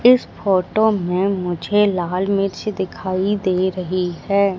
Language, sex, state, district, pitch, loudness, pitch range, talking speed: Hindi, female, Madhya Pradesh, Katni, 190 Hz, -19 LUFS, 185-200 Hz, 130 wpm